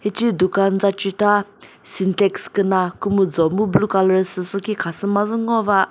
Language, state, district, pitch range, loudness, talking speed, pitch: Chakhesang, Nagaland, Dimapur, 190-205 Hz, -19 LUFS, 150 wpm, 195 Hz